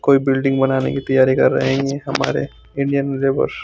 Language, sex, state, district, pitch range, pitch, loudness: Hindi, male, Chandigarh, Chandigarh, 130-135 Hz, 135 Hz, -18 LUFS